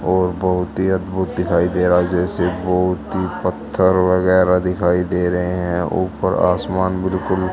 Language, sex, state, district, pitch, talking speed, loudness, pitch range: Hindi, female, Haryana, Charkhi Dadri, 90 Hz, 160 wpm, -18 LUFS, 90-95 Hz